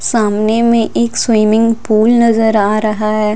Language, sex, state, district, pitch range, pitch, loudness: Hindi, female, Delhi, New Delhi, 215-230 Hz, 220 Hz, -12 LUFS